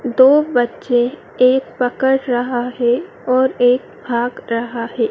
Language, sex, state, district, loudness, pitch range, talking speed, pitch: Hindi, female, Madhya Pradesh, Dhar, -17 LUFS, 240-260 Hz, 130 wpm, 245 Hz